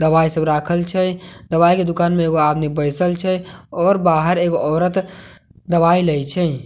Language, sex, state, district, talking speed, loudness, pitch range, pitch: Maithili, male, Bihar, Katihar, 170 wpm, -17 LUFS, 160-180 Hz, 175 Hz